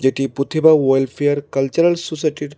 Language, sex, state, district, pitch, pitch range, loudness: Bengali, male, Tripura, West Tripura, 145 Hz, 135-155 Hz, -17 LUFS